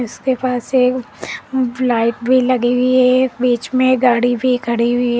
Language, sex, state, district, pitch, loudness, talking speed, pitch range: Hindi, female, Uttar Pradesh, Lalitpur, 250 Hz, -16 LUFS, 185 wpm, 240-255 Hz